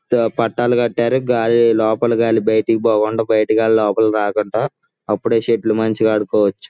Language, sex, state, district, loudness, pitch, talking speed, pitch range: Telugu, male, Andhra Pradesh, Guntur, -16 LUFS, 110 Hz, 145 wpm, 110-115 Hz